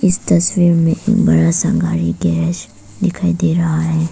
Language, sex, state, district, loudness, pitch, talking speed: Hindi, female, Arunachal Pradesh, Papum Pare, -15 LUFS, 165 Hz, 175 wpm